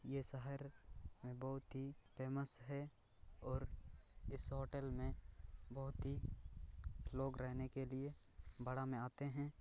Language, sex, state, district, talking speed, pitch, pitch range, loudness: Hindi, male, Bihar, Purnia, 120 wpm, 130 Hz, 105-135 Hz, -48 LUFS